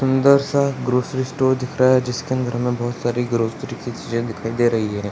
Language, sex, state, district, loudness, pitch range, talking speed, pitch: Hindi, male, Bihar, Sitamarhi, -20 LUFS, 120-130 Hz, 225 wpm, 125 Hz